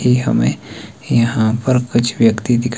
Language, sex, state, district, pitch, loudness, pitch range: Hindi, male, Himachal Pradesh, Shimla, 115 Hz, -15 LUFS, 110-125 Hz